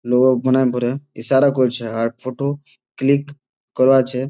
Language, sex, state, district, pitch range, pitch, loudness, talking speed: Bengali, male, West Bengal, Malda, 125-135 Hz, 130 Hz, -18 LUFS, 140 wpm